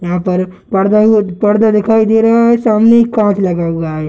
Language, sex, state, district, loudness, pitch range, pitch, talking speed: Hindi, male, Bihar, Gaya, -11 LUFS, 185-225 Hz, 210 Hz, 220 wpm